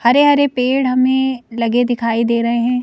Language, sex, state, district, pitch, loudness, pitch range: Hindi, female, Madhya Pradesh, Bhopal, 245 Hz, -15 LUFS, 235-260 Hz